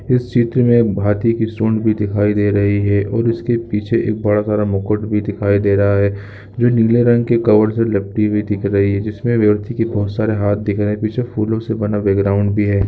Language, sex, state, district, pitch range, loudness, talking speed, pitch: Hindi, male, Jharkhand, Sahebganj, 100-115 Hz, -16 LUFS, 230 wpm, 105 Hz